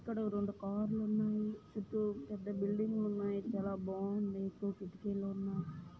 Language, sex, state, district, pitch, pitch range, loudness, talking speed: Telugu, female, Andhra Pradesh, Srikakulam, 205 Hz, 195-215 Hz, -39 LUFS, 160 wpm